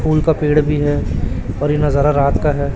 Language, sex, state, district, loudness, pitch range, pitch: Hindi, male, Chhattisgarh, Raipur, -16 LUFS, 140-150 Hz, 145 Hz